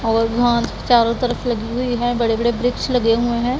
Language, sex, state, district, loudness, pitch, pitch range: Hindi, female, Punjab, Pathankot, -18 LUFS, 240 Hz, 230-245 Hz